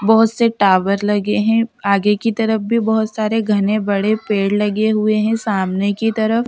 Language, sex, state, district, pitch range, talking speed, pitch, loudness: Hindi, female, Bihar, Patna, 205-225 Hz, 185 wpm, 215 Hz, -16 LUFS